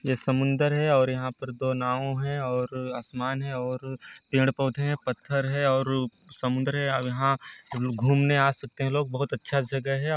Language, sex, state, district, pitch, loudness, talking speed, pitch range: Hindi, male, Chhattisgarh, Sarguja, 135 Hz, -27 LUFS, 200 wpm, 130-140 Hz